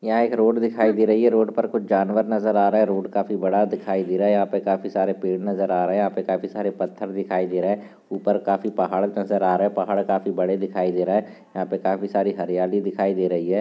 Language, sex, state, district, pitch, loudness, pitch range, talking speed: Hindi, male, Bihar, Lakhisarai, 100 Hz, -22 LUFS, 95-105 Hz, 265 wpm